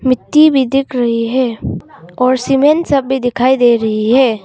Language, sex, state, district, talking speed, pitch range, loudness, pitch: Hindi, female, Arunachal Pradesh, Longding, 175 wpm, 240-270 Hz, -13 LUFS, 255 Hz